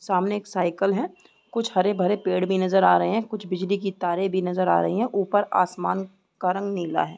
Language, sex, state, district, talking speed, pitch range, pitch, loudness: Hindi, female, Bihar, East Champaran, 225 wpm, 185-200 Hz, 190 Hz, -24 LUFS